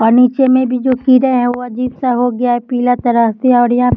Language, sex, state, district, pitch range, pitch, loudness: Hindi, female, Bihar, Samastipur, 245-255 Hz, 245 Hz, -13 LUFS